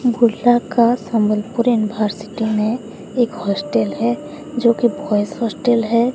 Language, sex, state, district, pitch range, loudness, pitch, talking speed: Hindi, female, Odisha, Sambalpur, 210-240 Hz, -18 LUFS, 225 Hz, 115 wpm